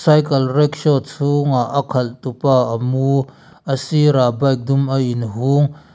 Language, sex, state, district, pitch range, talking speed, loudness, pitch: Mizo, male, Mizoram, Aizawl, 130-145 Hz, 160 wpm, -17 LUFS, 135 Hz